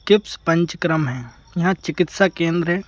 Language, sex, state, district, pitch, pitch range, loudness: Hindi, male, Madhya Pradesh, Bhopal, 170 Hz, 165-190 Hz, -20 LUFS